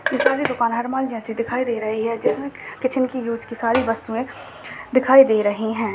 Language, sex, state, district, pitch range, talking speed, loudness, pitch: Hindi, male, Uttarakhand, Tehri Garhwal, 225-255 Hz, 210 wpm, -20 LUFS, 235 Hz